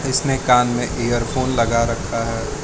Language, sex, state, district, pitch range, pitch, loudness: Hindi, male, Arunachal Pradesh, Lower Dibang Valley, 115-130 Hz, 120 Hz, -19 LUFS